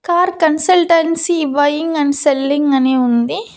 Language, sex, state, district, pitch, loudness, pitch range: Telugu, female, Andhra Pradesh, Annamaya, 305 Hz, -14 LUFS, 280-340 Hz